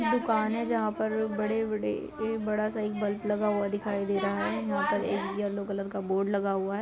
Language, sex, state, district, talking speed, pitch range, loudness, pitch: Hindi, female, Uttar Pradesh, Ghazipur, 200 wpm, 200-215 Hz, -30 LUFS, 210 Hz